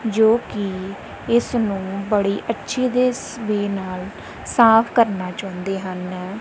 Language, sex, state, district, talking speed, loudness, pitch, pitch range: Punjabi, female, Punjab, Kapurthala, 85 wpm, -20 LUFS, 205 Hz, 190-230 Hz